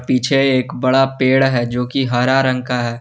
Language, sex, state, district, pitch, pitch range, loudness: Hindi, male, Jharkhand, Garhwa, 130 Hz, 125-135 Hz, -16 LUFS